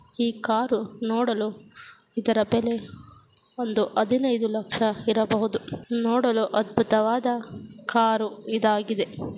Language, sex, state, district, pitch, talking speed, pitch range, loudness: Kannada, female, Karnataka, Gulbarga, 225 Hz, 90 wpm, 220-235 Hz, -25 LUFS